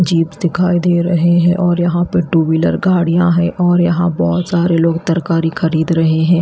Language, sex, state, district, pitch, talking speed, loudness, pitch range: Hindi, female, Haryana, Rohtak, 175 Hz, 195 wpm, -14 LUFS, 165-175 Hz